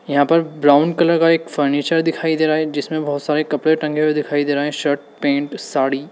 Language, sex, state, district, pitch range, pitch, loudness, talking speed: Hindi, male, Uttar Pradesh, Lalitpur, 145-160 Hz, 150 Hz, -18 LUFS, 235 wpm